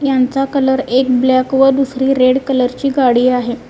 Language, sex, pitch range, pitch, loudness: Marathi, female, 255-270 Hz, 260 Hz, -13 LUFS